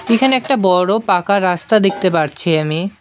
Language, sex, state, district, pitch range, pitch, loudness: Bengali, male, West Bengal, Alipurduar, 175-220 Hz, 190 Hz, -14 LUFS